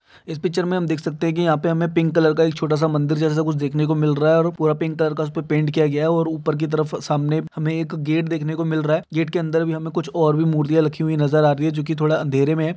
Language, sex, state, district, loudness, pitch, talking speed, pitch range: Hindi, male, Jharkhand, Jamtara, -20 LUFS, 160 Hz, 320 wpm, 155-165 Hz